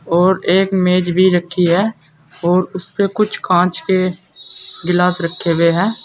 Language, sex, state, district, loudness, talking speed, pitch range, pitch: Hindi, male, Uttar Pradesh, Saharanpur, -15 LUFS, 160 wpm, 175-185 Hz, 180 Hz